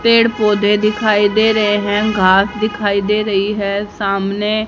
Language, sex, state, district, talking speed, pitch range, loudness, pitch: Hindi, female, Haryana, Rohtak, 155 wpm, 200-215 Hz, -15 LUFS, 210 Hz